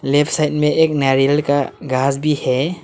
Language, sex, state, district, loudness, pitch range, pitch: Hindi, male, Arunachal Pradesh, Lower Dibang Valley, -17 LUFS, 135-150 Hz, 145 Hz